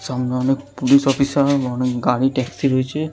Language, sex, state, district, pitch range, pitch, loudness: Bengali, male, West Bengal, Kolkata, 125-140 Hz, 130 Hz, -18 LUFS